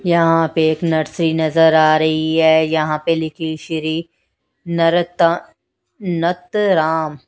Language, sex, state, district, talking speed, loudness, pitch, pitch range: Hindi, female, Odisha, Nuapada, 115 wpm, -16 LUFS, 160 Hz, 155-170 Hz